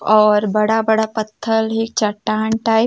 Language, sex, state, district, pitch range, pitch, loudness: Sadri, female, Chhattisgarh, Jashpur, 215-225 Hz, 220 Hz, -17 LUFS